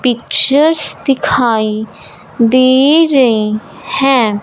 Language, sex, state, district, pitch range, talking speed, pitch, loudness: Hindi, male, Punjab, Fazilka, 220-275 Hz, 70 wpm, 255 Hz, -12 LUFS